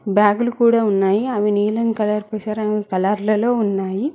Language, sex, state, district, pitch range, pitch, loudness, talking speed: Telugu, female, Telangana, Mahabubabad, 205-225 Hz, 210 Hz, -18 LUFS, 100 wpm